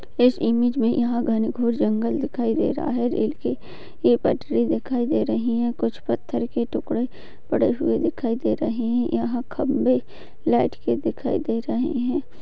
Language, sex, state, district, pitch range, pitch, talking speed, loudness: Hindi, female, Chhattisgarh, Bastar, 235-255 Hz, 240 Hz, 175 wpm, -23 LUFS